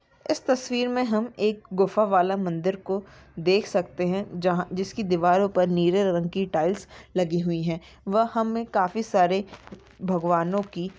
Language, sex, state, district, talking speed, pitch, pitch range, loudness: Hindi, female, Maharashtra, Nagpur, 160 wpm, 190 Hz, 180-210 Hz, -25 LUFS